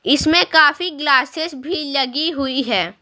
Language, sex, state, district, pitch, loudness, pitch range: Hindi, female, Bihar, Patna, 295 Hz, -16 LUFS, 275-330 Hz